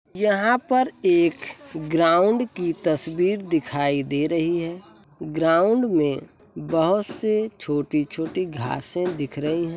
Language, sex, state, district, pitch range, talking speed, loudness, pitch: Hindi, male, Uttar Pradesh, Varanasi, 155-205 Hz, 115 wpm, -22 LUFS, 170 Hz